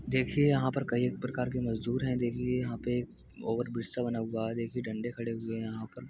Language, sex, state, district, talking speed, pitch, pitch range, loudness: Hindi, male, Uttar Pradesh, Budaun, 225 wpm, 120 Hz, 115-125 Hz, -33 LUFS